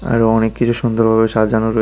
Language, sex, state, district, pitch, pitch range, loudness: Bengali, male, Tripura, West Tripura, 115 Hz, 110-115 Hz, -15 LUFS